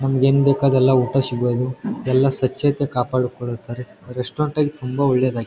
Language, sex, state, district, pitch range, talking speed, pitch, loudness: Kannada, male, Karnataka, Gulbarga, 125-135 Hz, 120 wpm, 130 Hz, -20 LUFS